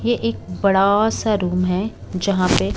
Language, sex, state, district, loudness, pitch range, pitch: Hindi, female, Bihar, West Champaran, -19 LUFS, 180-215 Hz, 195 Hz